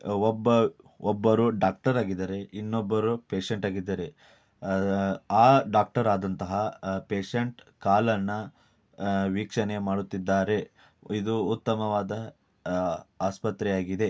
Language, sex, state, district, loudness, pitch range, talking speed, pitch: Kannada, male, Karnataka, Dharwad, -27 LUFS, 95-110 Hz, 85 wpm, 105 Hz